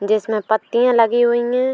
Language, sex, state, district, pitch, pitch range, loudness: Hindi, female, Uttar Pradesh, Etah, 235 Hz, 220-240 Hz, -17 LUFS